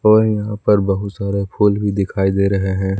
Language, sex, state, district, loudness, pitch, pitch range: Hindi, male, Jharkhand, Palamu, -17 LUFS, 100 Hz, 95-105 Hz